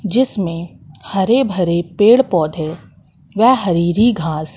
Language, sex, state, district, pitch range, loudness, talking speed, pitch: Hindi, female, Madhya Pradesh, Katni, 165-225 Hz, -15 LUFS, 120 wpm, 180 Hz